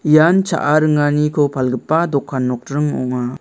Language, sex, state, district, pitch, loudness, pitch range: Garo, male, Meghalaya, West Garo Hills, 145 Hz, -16 LUFS, 130-155 Hz